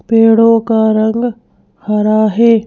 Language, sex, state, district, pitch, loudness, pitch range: Hindi, female, Madhya Pradesh, Bhopal, 225 Hz, -11 LUFS, 215-230 Hz